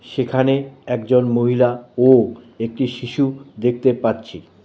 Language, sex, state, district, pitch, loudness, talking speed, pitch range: Bengali, male, West Bengal, Cooch Behar, 125 Hz, -18 LUFS, 105 wpm, 120-130 Hz